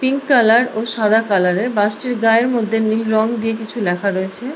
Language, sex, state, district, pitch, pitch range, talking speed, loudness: Bengali, female, West Bengal, Purulia, 225 Hz, 210-240 Hz, 210 wpm, -16 LUFS